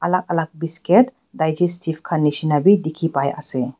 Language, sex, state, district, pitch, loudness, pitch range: Nagamese, female, Nagaland, Dimapur, 165 Hz, -19 LUFS, 150-175 Hz